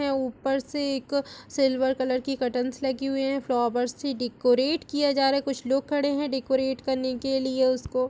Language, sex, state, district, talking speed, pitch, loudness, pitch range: Hindi, female, Bihar, Lakhisarai, 175 wpm, 265 Hz, -26 LUFS, 255-275 Hz